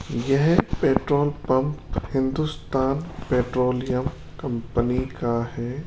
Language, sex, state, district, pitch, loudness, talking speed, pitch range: Hindi, male, Rajasthan, Jaipur, 130 Hz, -24 LUFS, 80 wpm, 120-145 Hz